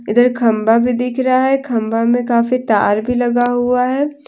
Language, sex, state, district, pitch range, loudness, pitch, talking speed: Hindi, female, Jharkhand, Deoghar, 230-250 Hz, -15 LUFS, 245 Hz, 210 wpm